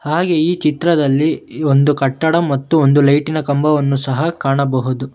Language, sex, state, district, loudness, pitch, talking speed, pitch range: Kannada, male, Karnataka, Bangalore, -15 LUFS, 145 Hz, 115 wpm, 140-160 Hz